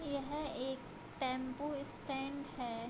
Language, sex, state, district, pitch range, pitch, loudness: Hindi, female, Uttar Pradesh, Budaun, 255-285 Hz, 270 Hz, -41 LUFS